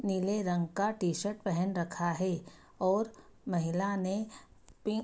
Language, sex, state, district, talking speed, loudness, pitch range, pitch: Hindi, female, Bihar, Sitamarhi, 145 wpm, -33 LUFS, 175-205 Hz, 190 Hz